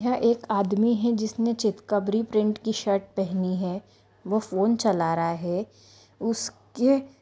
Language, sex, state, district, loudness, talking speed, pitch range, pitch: Hindi, female, Jharkhand, Jamtara, -25 LUFS, 160 wpm, 195-230 Hz, 215 Hz